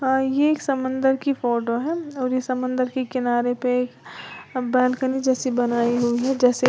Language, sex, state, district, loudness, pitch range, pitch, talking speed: Hindi, female, Uttar Pradesh, Lalitpur, -22 LUFS, 245-265 Hz, 255 Hz, 180 wpm